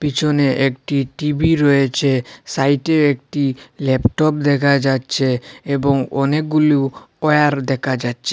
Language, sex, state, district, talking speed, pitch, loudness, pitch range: Bengali, male, Assam, Hailakandi, 100 wpm, 140 Hz, -17 LUFS, 135-150 Hz